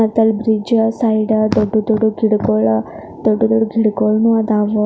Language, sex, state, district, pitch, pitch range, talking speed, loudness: Kannada, female, Karnataka, Belgaum, 220 Hz, 215-225 Hz, 150 wpm, -15 LUFS